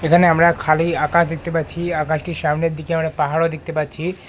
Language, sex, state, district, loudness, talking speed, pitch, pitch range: Bengali, male, West Bengal, Alipurduar, -19 LUFS, 195 wpm, 165 Hz, 155-170 Hz